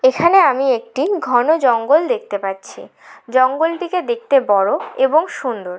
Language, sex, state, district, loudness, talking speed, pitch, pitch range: Bengali, female, West Bengal, Jalpaiguri, -16 LUFS, 125 wpm, 270 Hz, 235-345 Hz